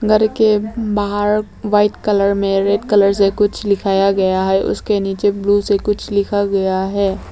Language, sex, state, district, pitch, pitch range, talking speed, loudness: Hindi, female, Arunachal Pradesh, Lower Dibang Valley, 205 Hz, 195-210 Hz, 170 wpm, -16 LUFS